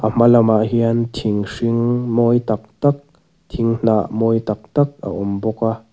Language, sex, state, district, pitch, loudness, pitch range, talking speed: Mizo, male, Mizoram, Aizawl, 115 Hz, -18 LUFS, 110-120 Hz, 180 wpm